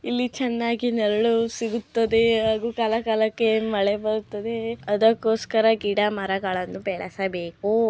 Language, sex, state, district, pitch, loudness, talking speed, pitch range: Kannada, female, Karnataka, Bijapur, 220 Hz, -23 LUFS, 100 wpm, 210-230 Hz